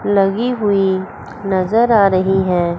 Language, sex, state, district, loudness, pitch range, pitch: Hindi, female, Chandigarh, Chandigarh, -15 LUFS, 185-205 Hz, 195 Hz